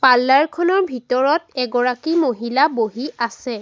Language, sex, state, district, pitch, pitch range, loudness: Assamese, female, Assam, Sonitpur, 255 Hz, 245-305 Hz, -18 LUFS